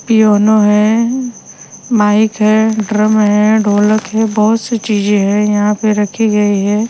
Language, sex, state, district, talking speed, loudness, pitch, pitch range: Hindi, female, Himachal Pradesh, Shimla, 150 wpm, -12 LUFS, 215 Hz, 210-220 Hz